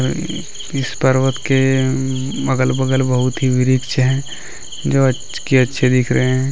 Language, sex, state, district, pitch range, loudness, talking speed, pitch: Hindi, male, Jharkhand, Deoghar, 130-135 Hz, -17 LUFS, 140 wpm, 130 Hz